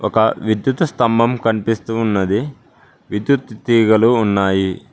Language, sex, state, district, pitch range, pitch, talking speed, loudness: Telugu, male, Telangana, Mahabubabad, 105-120 Hz, 115 Hz, 95 wpm, -16 LUFS